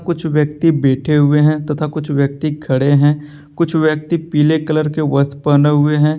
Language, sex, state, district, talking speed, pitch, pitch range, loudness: Hindi, male, Jharkhand, Deoghar, 185 wpm, 150 Hz, 145-155 Hz, -15 LUFS